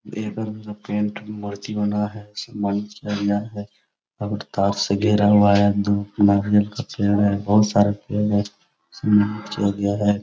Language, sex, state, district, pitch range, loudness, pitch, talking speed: Hindi, male, Jharkhand, Sahebganj, 100-105 Hz, -21 LUFS, 105 Hz, 140 wpm